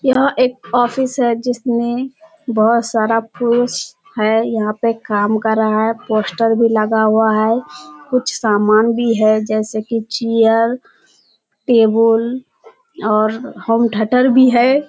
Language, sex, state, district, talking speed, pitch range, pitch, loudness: Hindi, female, Bihar, Kishanganj, 135 wpm, 220-245 Hz, 230 Hz, -15 LUFS